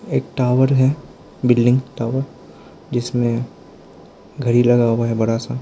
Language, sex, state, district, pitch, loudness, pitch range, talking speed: Hindi, male, Arunachal Pradesh, Lower Dibang Valley, 120 Hz, -18 LUFS, 115-130 Hz, 130 wpm